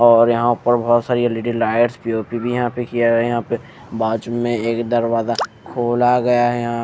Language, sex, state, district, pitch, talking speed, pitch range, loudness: Hindi, male, Bihar, Patna, 120 Hz, 220 wpm, 115-120 Hz, -18 LUFS